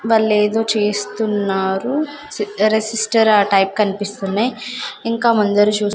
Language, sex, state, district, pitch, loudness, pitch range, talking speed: Telugu, female, Andhra Pradesh, Sri Satya Sai, 215 Hz, -17 LUFS, 205-225 Hz, 90 wpm